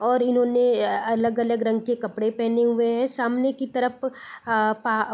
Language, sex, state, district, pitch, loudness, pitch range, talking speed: Hindi, female, Bihar, East Champaran, 235 Hz, -23 LUFS, 225-245 Hz, 175 wpm